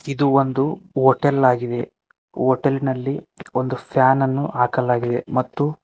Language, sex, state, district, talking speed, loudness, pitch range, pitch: Kannada, male, Karnataka, Koppal, 105 wpm, -20 LUFS, 125-140 Hz, 130 Hz